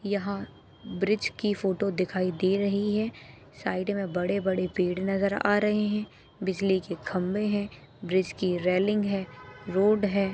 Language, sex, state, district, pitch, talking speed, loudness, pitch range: Hindi, female, Chhattisgarh, Jashpur, 195 Hz, 155 wpm, -28 LUFS, 185-205 Hz